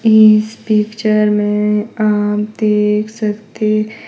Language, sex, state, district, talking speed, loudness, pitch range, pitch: Hindi, male, Himachal Pradesh, Shimla, 105 wpm, -14 LUFS, 210-215 Hz, 215 Hz